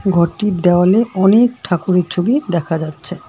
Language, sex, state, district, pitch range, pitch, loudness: Bengali, female, West Bengal, Alipurduar, 170-200 Hz, 180 Hz, -15 LUFS